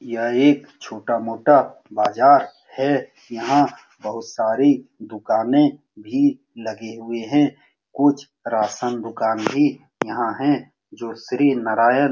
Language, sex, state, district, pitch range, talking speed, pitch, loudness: Hindi, male, Bihar, Saran, 115-145 Hz, 115 wpm, 125 Hz, -20 LUFS